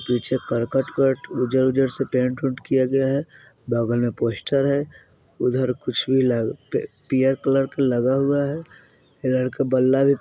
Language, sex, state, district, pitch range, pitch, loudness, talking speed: Bajjika, male, Bihar, Vaishali, 125-135 Hz, 130 Hz, -22 LUFS, 170 wpm